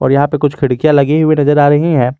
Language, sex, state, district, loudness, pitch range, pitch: Hindi, male, Jharkhand, Garhwa, -11 LUFS, 140-150 Hz, 145 Hz